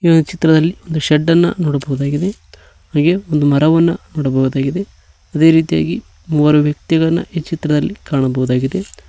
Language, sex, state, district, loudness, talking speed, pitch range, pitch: Kannada, male, Karnataka, Koppal, -15 LUFS, 110 wpm, 135-165 Hz, 150 Hz